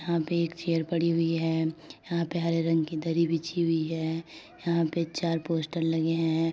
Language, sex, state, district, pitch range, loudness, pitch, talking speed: Hindi, female, Uttar Pradesh, Etah, 160-170 Hz, -28 LUFS, 165 Hz, 200 wpm